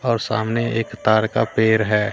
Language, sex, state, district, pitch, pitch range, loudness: Hindi, male, Bihar, Katihar, 110 Hz, 110-115 Hz, -19 LUFS